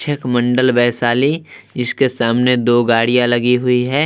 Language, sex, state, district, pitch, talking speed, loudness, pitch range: Hindi, male, Bihar, Vaishali, 125 Hz, 150 wpm, -15 LUFS, 120-130 Hz